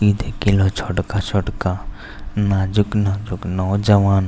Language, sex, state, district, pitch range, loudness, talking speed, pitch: Bhojpuri, male, Uttar Pradesh, Deoria, 95-105 Hz, -19 LUFS, 100 wpm, 100 Hz